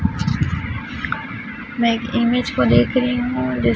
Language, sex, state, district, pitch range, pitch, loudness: Hindi, female, Chhattisgarh, Raipur, 230-245 Hz, 240 Hz, -20 LUFS